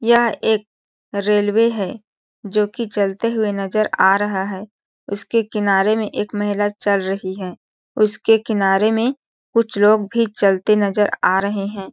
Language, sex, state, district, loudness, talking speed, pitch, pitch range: Hindi, female, Chhattisgarh, Balrampur, -18 LUFS, 155 wpm, 210 Hz, 200-220 Hz